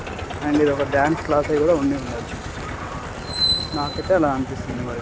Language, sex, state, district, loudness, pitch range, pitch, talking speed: Telugu, male, Telangana, Karimnagar, -22 LUFS, 110-145 Hz, 135 Hz, 130 wpm